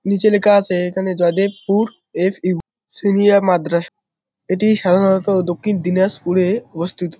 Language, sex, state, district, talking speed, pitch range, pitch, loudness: Bengali, male, West Bengal, Jalpaiguri, 125 wpm, 180-200 Hz, 190 Hz, -17 LUFS